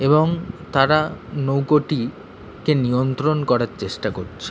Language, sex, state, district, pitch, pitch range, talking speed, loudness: Bengali, male, West Bengal, Kolkata, 150 Hz, 135-155 Hz, 105 wpm, -21 LUFS